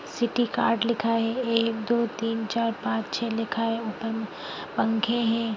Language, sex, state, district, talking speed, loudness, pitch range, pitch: Hindi, female, Bihar, Madhepura, 160 wpm, -26 LUFS, 225-235 Hz, 230 Hz